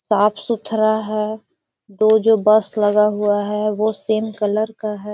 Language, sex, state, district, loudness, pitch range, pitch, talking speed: Hindi, female, Bihar, Gaya, -18 LUFS, 210-220 Hz, 215 Hz, 165 wpm